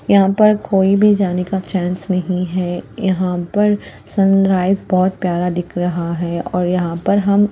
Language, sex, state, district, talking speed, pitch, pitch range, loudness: Hindi, female, Bihar, Patna, 170 wpm, 185 Hz, 180-200 Hz, -16 LUFS